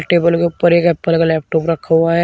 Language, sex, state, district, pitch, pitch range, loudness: Hindi, male, Uttar Pradesh, Shamli, 165 Hz, 165-170 Hz, -14 LUFS